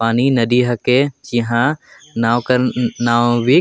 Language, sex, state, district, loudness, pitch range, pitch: Sadri, male, Chhattisgarh, Jashpur, -16 LUFS, 120-125 Hz, 120 Hz